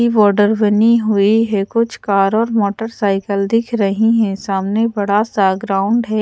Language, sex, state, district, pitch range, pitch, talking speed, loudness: Hindi, female, Odisha, Sambalpur, 200-225 Hz, 210 Hz, 155 wpm, -15 LUFS